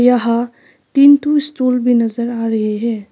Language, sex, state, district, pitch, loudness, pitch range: Hindi, female, Arunachal Pradesh, Papum Pare, 240 Hz, -14 LUFS, 230-255 Hz